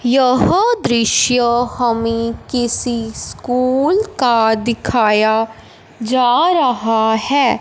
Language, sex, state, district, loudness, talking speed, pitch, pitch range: Hindi, female, Punjab, Fazilka, -15 LUFS, 80 wpm, 240 Hz, 225-255 Hz